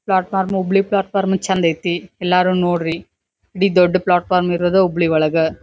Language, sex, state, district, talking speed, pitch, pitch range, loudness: Kannada, female, Karnataka, Dharwad, 170 wpm, 180 Hz, 175-190 Hz, -17 LUFS